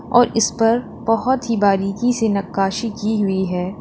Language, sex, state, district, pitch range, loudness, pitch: Hindi, female, Uttar Pradesh, Lalitpur, 195-235 Hz, -19 LUFS, 220 Hz